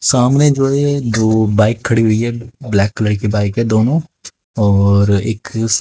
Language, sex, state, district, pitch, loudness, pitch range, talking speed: Hindi, male, Haryana, Jhajjar, 110 Hz, -14 LUFS, 105-125 Hz, 165 wpm